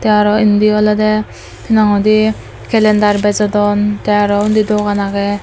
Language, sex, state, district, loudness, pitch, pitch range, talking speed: Chakma, female, Tripura, Dhalai, -13 LUFS, 210 Hz, 205-215 Hz, 145 wpm